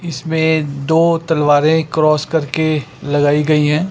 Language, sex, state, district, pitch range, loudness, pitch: Hindi, male, Chandigarh, Chandigarh, 150-160 Hz, -15 LUFS, 155 Hz